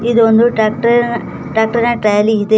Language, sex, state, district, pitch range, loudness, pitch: Kannada, female, Karnataka, Koppal, 220-235 Hz, -13 LUFS, 225 Hz